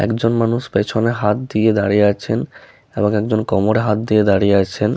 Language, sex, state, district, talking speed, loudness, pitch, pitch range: Bengali, male, West Bengal, Malda, 170 wpm, -17 LUFS, 105 Hz, 105-115 Hz